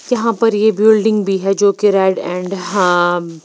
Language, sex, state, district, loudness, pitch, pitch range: Hindi, female, Bihar, Patna, -14 LUFS, 195 Hz, 180-220 Hz